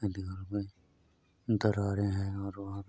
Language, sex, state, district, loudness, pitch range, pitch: Hindi, male, Uttar Pradesh, Varanasi, -34 LUFS, 95-100 Hz, 100 Hz